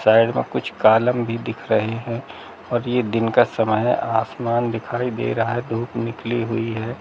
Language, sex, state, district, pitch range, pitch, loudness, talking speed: Hindi, male, Bihar, Gaya, 115-120 Hz, 115 Hz, -21 LUFS, 195 wpm